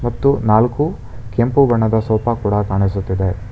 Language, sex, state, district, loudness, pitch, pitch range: Kannada, male, Karnataka, Bangalore, -17 LUFS, 110 Hz, 105-120 Hz